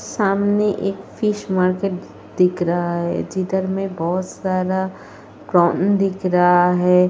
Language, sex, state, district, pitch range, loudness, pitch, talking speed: Hindi, female, Uttar Pradesh, Etah, 180-195 Hz, -19 LUFS, 185 Hz, 125 wpm